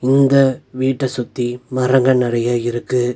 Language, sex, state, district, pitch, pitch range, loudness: Tamil, male, Tamil Nadu, Nilgiris, 130 Hz, 120-130 Hz, -17 LUFS